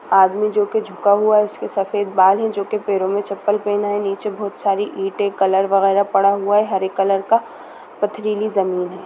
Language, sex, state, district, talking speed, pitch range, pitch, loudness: Hindi, female, Bihar, Sitamarhi, 210 wpm, 195-210 Hz, 200 Hz, -18 LUFS